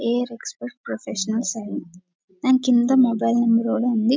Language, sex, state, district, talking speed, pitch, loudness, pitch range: Telugu, female, Telangana, Nalgonda, 115 wpm, 230 Hz, -21 LUFS, 200-245 Hz